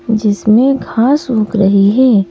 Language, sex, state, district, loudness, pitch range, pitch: Hindi, female, Madhya Pradesh, Bhopal, -11 LUFS, 205-250 Hz, 220 Hz